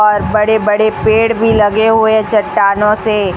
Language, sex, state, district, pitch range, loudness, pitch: Hindi, female, Chhattisgarh, Raipur, 210-220 Hz, -11 LUFS, 215 Hz